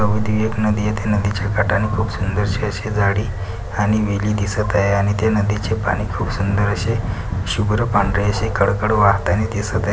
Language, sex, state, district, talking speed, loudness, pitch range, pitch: Marathi, male, Maharashtra, Pune, 185 wpm, -19 LUFS, 100-105 Hz, 105 Hz